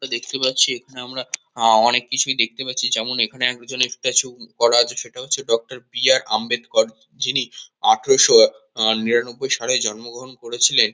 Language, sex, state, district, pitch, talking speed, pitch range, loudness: Bengali, male, West Bengal, Kolkata, 125 Hz, 165 wpm, 115-130 Hz, -19 LUFS